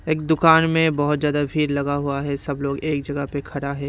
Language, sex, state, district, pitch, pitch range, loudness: Hindi, male, Haryana, Rohtak, 145 Hz, 140-155 Hz, -21 LUFS